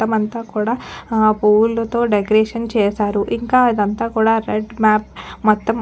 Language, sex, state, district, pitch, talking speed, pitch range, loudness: Telugu, female, Telangana, Nalgonda, 220 Hz, 115 wpm, 215-230 Hz, -17 LUFS